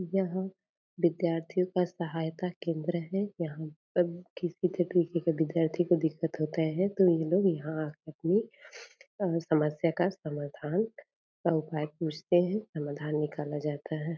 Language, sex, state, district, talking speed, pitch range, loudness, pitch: Hindi, female, Bihar, Purnia, 145 wpm, 155-185 Hz, -31 LUFS, 170 Hz